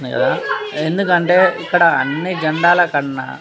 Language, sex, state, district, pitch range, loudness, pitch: Telugu, male, Telangana, Nalgonda, 155-180 Hz, -15 LUFS, 170 Hz